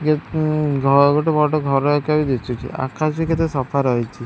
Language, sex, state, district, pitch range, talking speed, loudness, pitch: Odia, male, Odisha, Khordha, 135-155 Hz, 155 wpm, -19 LUFS, 145 Hz